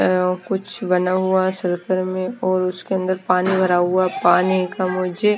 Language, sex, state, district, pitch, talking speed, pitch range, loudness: Hindi, female, Himachal Pradesh, Shimla, 185 Hz, 155 wpm, 180-190 Hz, -19 LUFS